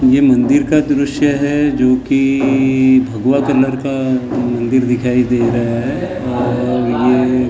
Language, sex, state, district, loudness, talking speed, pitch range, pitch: Hindi, male, Maharashtra, Gondia, -14 LUFS, 135 wpm, 125-140 Hz, 130 Hz